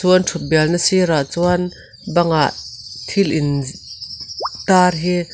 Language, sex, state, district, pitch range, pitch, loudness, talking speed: Mizo, female, Mizoram, Aizawl, 155-180 Hz, 175 Hz, -17 LUFS, 145 wpm